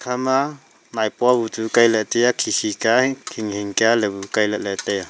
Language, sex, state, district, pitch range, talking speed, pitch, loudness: Wancho, male, Arunachal Pradesh, Longding, 105-125 Hz, 235 wpm, 115 Hz, -20 LUFS